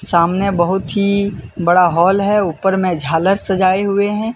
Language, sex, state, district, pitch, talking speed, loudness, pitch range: Hindi, male, Jharkhand, Deoghar, 190 Hz, 165 wpm, -15 LUFS, 175-200 Hz